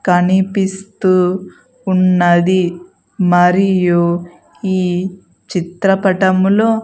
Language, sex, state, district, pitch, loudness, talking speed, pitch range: Telugu, female, Andhra Pradesh, Sri Satya Sai, 185 Hz, -14 LUFS, 45 wpm, 180-195 Hz